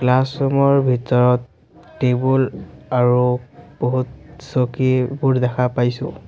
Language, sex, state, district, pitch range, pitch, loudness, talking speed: Assamese, male, Assam, Sonitpur, 125-135 Hz, 125 Hz, -18 LUFS, 85 wpm